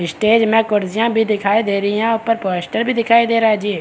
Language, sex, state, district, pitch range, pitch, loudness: Hindi, male, Bihar, Begusarai, 205-230 Hz, 220 Hz, -16 LUFS